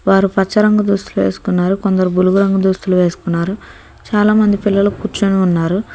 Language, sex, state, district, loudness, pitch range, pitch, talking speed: Telugu, female, Telangana, Hyderabad, -14 LUFS, 185-200 Hz, 195 Hz, 120 wpm